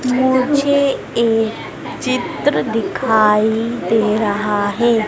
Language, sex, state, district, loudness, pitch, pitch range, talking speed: Hindi, female, Madhya Pradesh, Dhar, -16 LUFS, 230 Hz, 215-260 Hz, 85 wpm